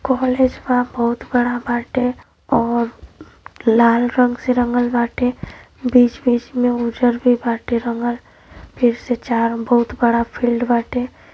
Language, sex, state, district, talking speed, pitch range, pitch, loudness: Hindi, female, Uttar Pradesh, Ghazipur, 125 wpm, 235-245 Hz, 240 Hz, -18 LUFS